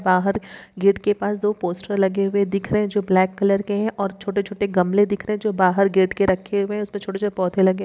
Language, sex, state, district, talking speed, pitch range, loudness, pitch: Hindi, female, Chhattisgarh, Korba, 260 wpm, 190-205 Hz, -21 LUFS, 200 Hz